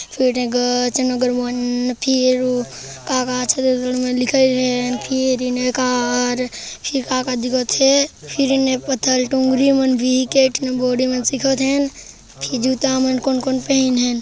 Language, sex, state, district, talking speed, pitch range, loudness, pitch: Hindi, male, Chhattisgarh, Jashpur, 170 wpm, 250-265 Hz, -18 LUFS, 255 Hz